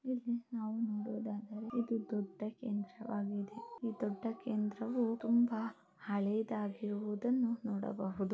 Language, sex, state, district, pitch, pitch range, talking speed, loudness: Kannada, female, Karnataka, Chamarajanagar, 220 Hz, 210-235 Hz, 70 wpm, -38 LUFS